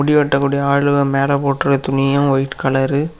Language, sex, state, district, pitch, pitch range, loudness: Tamil, male, Tamil Nadu, Kanyakumari, 140 Hz, 135-140 Hz, -16 LUFS